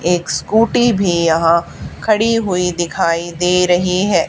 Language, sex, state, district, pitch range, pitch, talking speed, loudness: Hindi, female, Haryana, Charkhi Dadri, 170-205 Hz, 180 Hz, 140 wpm, -15 LUFS